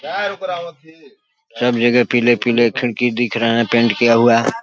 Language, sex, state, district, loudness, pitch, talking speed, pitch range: Hindi, male, Chhattisgarh, Balrampur, -16 LUFS, 120 Hz, 155 wpm, 120-170 Hz